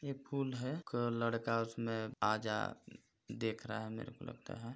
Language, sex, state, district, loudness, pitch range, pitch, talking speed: Hindi, male, Chhattisgarh, Balrampur, -39 LUFS, 110-130 Hz, 115 Hz, 175 wpm